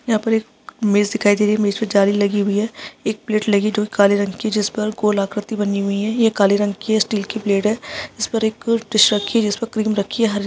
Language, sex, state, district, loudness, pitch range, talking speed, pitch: Hindi, female, Maharashtra, Sindhudurg, -18 LUFS, 205-220 Hz, 225 wpm, 210 Hz